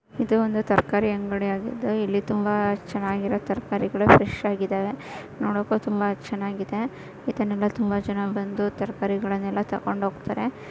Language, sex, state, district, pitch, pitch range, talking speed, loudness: Kannada, female, Karnataka, Raichur, 205 Hz, 200-210 Hz, 110 wpm, -25 LUFS